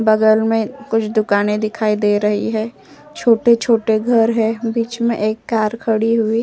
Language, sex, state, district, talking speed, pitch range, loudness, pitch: Hindi, female, Uttar Pradesh, Etah, 170 wpm, 215-230 Hz, -17 LUFS, 220 Hz